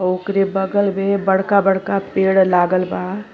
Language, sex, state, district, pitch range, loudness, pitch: Bhojpuri, female, Uttar Pradesh, Gorakhpur, 185-200 Hz, -17 LUFS, 195 Hz